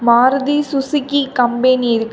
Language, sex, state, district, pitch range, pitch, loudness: Tamil, female, Tamil Nadu, Kanyakumari, 240-285 Hz, 255 Hz, -15 LUFS